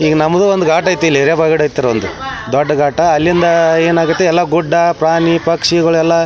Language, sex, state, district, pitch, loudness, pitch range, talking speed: Kannada, male, Karnataka, Belgaum, 165 Hz, -12 LUFS, 155-170 Hz, 165 wpm